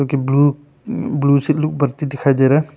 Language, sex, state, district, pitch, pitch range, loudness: Hindi, male, Arunachal Pradesh, Papum Pare, 140 Hz, 140-145 Hz, -17 LUFS